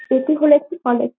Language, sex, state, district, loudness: Bengali, female, West Bengal, Jalpaiguri, -16 LUFS